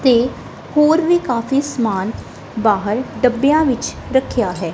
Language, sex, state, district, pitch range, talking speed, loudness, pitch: Punjabi, female, Punjab, Kapurthala, 225-280 Hz, 125 wpm, -17 LUFS, 250 Hz